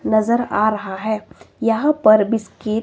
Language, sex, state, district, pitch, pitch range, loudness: Hindi, female, Himachal Pradesh, Shimla, 215 Hz, 215-225 Hz, -18 LUFS